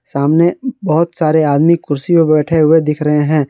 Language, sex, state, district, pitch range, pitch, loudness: Hindi, male, Jharkhand, Garhwa, 150-165 Hz, 155 Hz, -13 LUFS